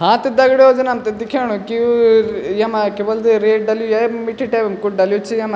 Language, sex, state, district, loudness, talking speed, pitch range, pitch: Garhwali, male, Uttarakhand, Tehri Garhwal, -15 LUFS, 205 wpm, 215-235 Hz, 225 Hz